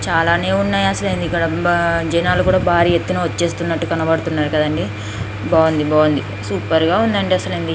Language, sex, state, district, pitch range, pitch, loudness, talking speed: Telugu, female, Andhra Pradesh, Srikakulam, 105-170 Hz, 155 Hz, -17 LUFS, 115 wpm